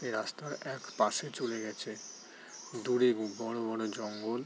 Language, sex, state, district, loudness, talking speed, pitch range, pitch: Bengali, male, West Bengal, Jalpaiguri, -35 LUFS, 150 wpm, 110-115 Hz, 110 Hz